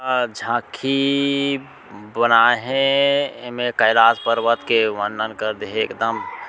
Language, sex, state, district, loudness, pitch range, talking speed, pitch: Chhattisgarhi, male, Chhattisgarh, Sukma, -19 LUFS, 115-140 Hz, 120 wpm, 120 Hz